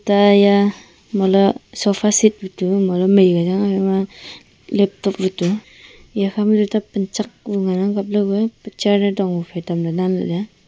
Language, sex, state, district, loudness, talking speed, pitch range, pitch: Wancho, female, Arunachal Pradesh, Longding, -18 LUFS, 175 wpm, 185-205 Hz, 195 Hz